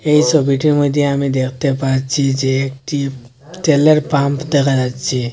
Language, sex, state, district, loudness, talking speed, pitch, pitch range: Bengali, male, Assam, Hailakandi, -15 LUFS, 135 wpm, 140 Hz, 135-145 Hz